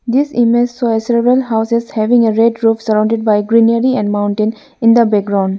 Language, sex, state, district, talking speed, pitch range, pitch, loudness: English, female, Arunachal Pradesh, Lower Dibang Valley, 195 wpm, 215-235 Hz, 230 Hz, -13 LUFS